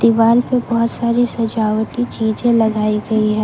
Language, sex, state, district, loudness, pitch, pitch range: Hindi, female, Jharkhand, Ranchi, -16 LUFS, 230 Hz, 220-235 Hz